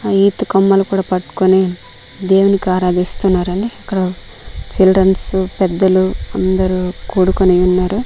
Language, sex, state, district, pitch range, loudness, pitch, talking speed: Telugu, female, Andhra Pradesh, Manyam, 185-195 Hz, -14 LUFS, 190 Hz, 90 wpm